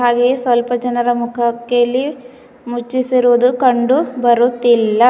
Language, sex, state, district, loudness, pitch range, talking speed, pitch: Kannada, female, Karnataka, Bidar, -15 LUFS, 240-255 Hz, 95 wpm, 245 Hz